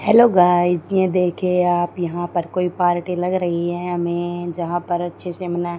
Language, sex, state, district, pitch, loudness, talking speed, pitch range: Hindi, female, Haryana, Charkhi Dadri, 175 Hz, -20 LUFS, 185 wpm, 175-180 Hz